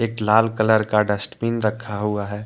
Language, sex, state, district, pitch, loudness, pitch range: Hindi, male, Jharkhand, Deoghar, 110 Hz, -20 LUFS, 105-110 Hz